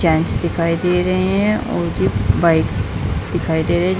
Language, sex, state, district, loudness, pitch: Hindi, female, Uttar Pradesh, Saharanpur, -17 LUFS, 160 Hz